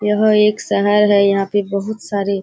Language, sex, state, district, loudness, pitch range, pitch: Hindi, female, Bihar, Kishanganj, -15 LUFS, 200-210 Hz, 205 Hz